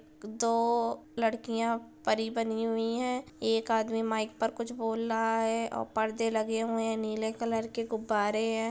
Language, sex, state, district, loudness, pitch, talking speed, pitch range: Hindi, female, Bihar, Gopalganj, -31 LUFS, 225 Hz, 185 wpm, 220-230 Hz